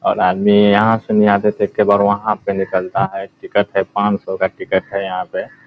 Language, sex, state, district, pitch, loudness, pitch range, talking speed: Hindi, male, Bihar, Muzaffarpur, 100 Hz, -16 LUFS, 95-105 Hz, 220 wpm